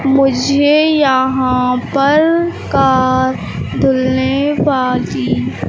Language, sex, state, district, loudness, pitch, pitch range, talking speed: Hindi, male, Madhya Pradesh, Katni, -13 LUFS, 270 Hz, 260-285 Hz, 65 wpm